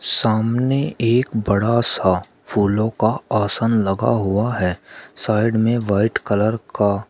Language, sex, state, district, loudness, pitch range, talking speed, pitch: Hindi, male, Uttar Pradesh, Shamli, -19 LUFS, 100-115 Hz, 125 wpm, 110 Hz